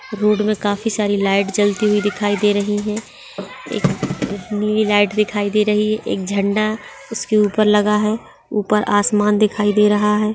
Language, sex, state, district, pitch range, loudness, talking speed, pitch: Hindi, female, Bihar, Bhagalpur, 205-215 Hz, -18 LUFS, 180 wpm, 210 Hz